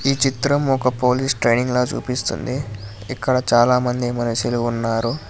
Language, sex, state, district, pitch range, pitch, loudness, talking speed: Telugu, male, Telangana, Hyderabad, 115-130 Hz, 125 Hz, -19 LUFS, 115 wpm